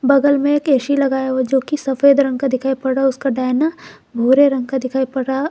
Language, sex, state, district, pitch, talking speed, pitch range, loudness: Hindi, female, Jharkhand, Garhwa, 270 Hz, 240 wpm, 260-280 Hz, -16 LUFS